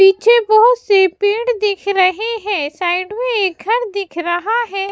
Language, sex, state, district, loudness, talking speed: Hindi, female, Bihar, West Champaran, -15 LUFS, 170 wpm